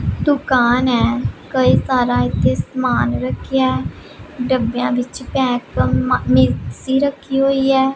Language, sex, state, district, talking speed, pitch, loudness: Punjabi, female, Punjab, Pathankot, 105 wpm, 245 Hz, -17 LUFS